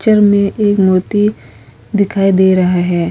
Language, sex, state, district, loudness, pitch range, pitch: Hindi, female, Uttar Pradesh, Hamirpur, -12 LUFS, 175-205 Hz, 190 Hz